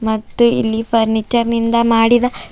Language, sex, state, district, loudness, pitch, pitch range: Kannada, female, Karnataka, Bidar, -15 LUFS, 230 Hz, 220-235 Hz